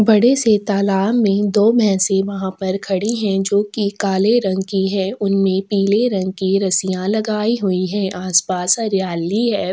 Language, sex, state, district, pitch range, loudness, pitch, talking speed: Hindi, female, Chhattisgarh, Sukma, 190-210 Hz, -17 LUFS, 195 Hz, 165 wpm